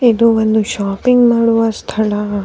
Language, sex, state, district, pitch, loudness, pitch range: Kannada, female, Karnataka, Dharwad, 220 Hz, -13 LUFS, 210-230 Hz